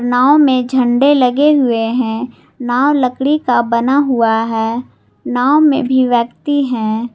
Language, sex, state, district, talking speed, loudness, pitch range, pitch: Hindi, female, Jharkhand, Garhwa, 145 wpm, -13 LUFS, 235-275 Hz, 250 Hz